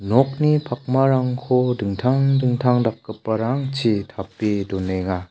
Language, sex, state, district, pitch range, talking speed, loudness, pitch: Garo, male, Meghalaya, South Garo Hills, 105-130 Hz, 80 wpm, -20 LUFS, 120 Hz